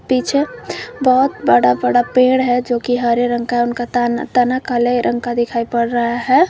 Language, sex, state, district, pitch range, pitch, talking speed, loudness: Hindi, female, Jharkhand, Garhwa, 240-255 Hz, 245 Hz, 185 wpm, -16 LUFS